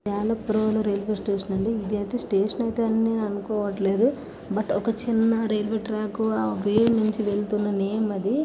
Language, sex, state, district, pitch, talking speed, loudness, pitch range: Telugu, female, Andhra Pradesh, Krishna, 215 Hz, 165 wpm, -25 LUFS, 205-225 Hz